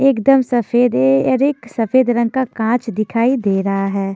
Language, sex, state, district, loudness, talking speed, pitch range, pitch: Hindi, female, Maharashtra, Washim, -16 LUFS, 190 wpm, 200-260 Hz, 235 Hz